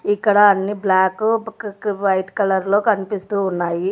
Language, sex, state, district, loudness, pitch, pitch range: Telugu, female, Telangana, Hyderabad, -18 LUFS, 200 Hz, 190-205 Hz